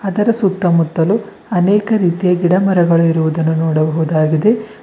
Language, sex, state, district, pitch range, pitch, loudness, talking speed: Kannada, male, Karnataka, Bidar, 160-205 Hz, 180 Hz, -14 LUFS, 85 wpm